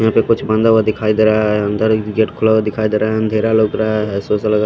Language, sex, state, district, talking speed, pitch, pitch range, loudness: Hindi, male, Haryana, Rohtak, 335 wpm, 110 Hz, 105-110 Hz, -15 LUFS